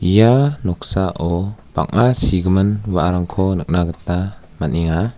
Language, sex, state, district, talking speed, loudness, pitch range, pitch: Garo, male, Meghalaya, West Garo Hills, 95 wpm, -17 LUFS, 85-105 Hz, 95 Hz